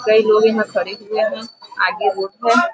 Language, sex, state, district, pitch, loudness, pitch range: Hindi, female, Uttar Pradesh, Gorakhpur, 220 Hz, -17 LUFS, 215-260 Hz